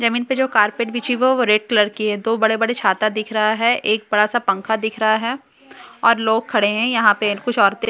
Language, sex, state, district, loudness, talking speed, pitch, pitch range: Hindi, female, Bihar, Katihar, -18 LUFS, 250 wpm, 220 Hz, 210-235 Hz